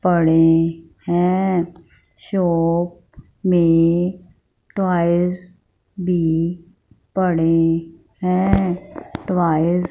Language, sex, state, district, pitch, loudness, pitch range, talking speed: Hindi, female, Punjab, Fazilka, 175 Hz, -18 LUFS, 165-180 Hz, 60 wpm